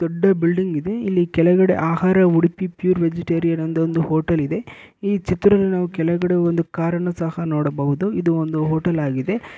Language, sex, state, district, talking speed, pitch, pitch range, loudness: Kannada, male, Karnataka, Bellary, 130 wpm, 170 Hz, 165-185 Hz, -19 LUFS